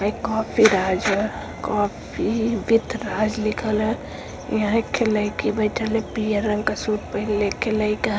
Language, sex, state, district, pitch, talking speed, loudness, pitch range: Hindi, female, Uttar Pradesh, Varanasi, 215 Hz, 145 wpm, -22 LUFS, 210-220 Hz